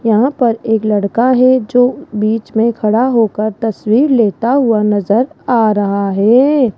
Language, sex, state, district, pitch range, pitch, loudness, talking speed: Hindi, female, Rajasthan, Jaipur, 215-245 Hz, 225 Hz, -13 LUFS, 150 wpm